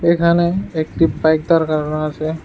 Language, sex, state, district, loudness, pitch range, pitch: Bengali, male, Tripura, West Tripura, -17 LUFS, 155-170 Hz, 160 Hz